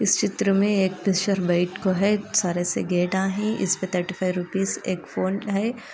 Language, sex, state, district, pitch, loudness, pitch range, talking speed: Hindi, female, Andhra Pradesh, Anantapur, 190 Hz, -23 LUFS, 180-200 Hz, 210 wpm